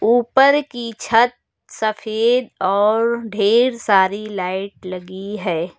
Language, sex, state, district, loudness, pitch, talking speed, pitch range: Hindi, male, Uttar Pradesh, Lucknow, -18 LUFS, 220 Hz, 105 wpm, 195-235 Hz